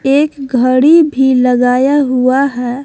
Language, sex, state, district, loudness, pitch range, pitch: Hindi, female, Jharkhand, Palamu, -11 LUFS, 250-280 Hz, 265 Hz